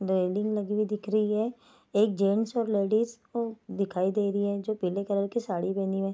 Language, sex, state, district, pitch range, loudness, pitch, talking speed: Hindi, female, Bihar, Darbhanga, 195-220 Hz, -29 LUFS, 205 Hz, 225 wpm